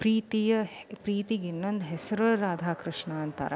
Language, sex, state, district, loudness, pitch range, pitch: Kannada, female, Karnataka, Belgaum, -30 LUFS, 170-220 Hz, 205 Hz